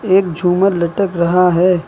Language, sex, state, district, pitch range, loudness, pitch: Hindi, male, Uttar Pradesh, Lucknow, 175-190 Hz, -14 LUFS, 180 Hz